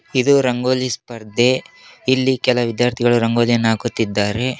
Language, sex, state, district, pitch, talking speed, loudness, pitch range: Kannada, male, Karnataka, Koppal, 120 Hz, 105 wpm, -18 LUFS, 115-130 Hz